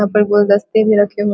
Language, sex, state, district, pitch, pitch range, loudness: Hindi, female, Bihar, Vaishali, 205 Hz, 205-210 Hz, -13 LUFS